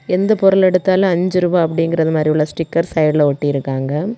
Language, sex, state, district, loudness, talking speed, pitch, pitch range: Tamil, female, Tamil Nadu, Kanyakumari, -15 LUFS, 170 wpm, 165 Hz, 150-185 Hz